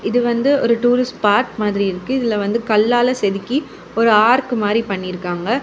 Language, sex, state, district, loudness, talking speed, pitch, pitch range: Tamil, female, Tamil Nadu, Kanyakumari, -17 LUFS, 170 wpm, 230 Hz, 205-245 Hz